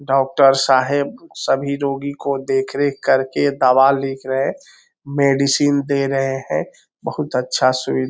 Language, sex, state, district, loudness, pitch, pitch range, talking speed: Hindi, male, Bihar, Araria, -18 LUFS, 135 Hz, 135-140 Hz, 140 wpm